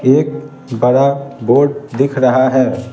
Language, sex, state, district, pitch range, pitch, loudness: Hindi, male, Bihar, Patna, 130-140 Hz, 130 Hz, -14 LUFS